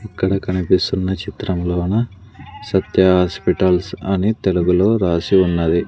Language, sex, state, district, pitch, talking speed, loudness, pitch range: Telugu, male, Andhra Pradesh, Sri Satya Sai, 95 Hz, 90 wpm, -17 LUFS, 90-100 Hz